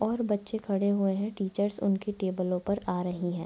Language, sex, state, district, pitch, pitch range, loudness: Hindi, female, Bihar, Araria, 195 Hz, 185-205 Hz, -30 LUFS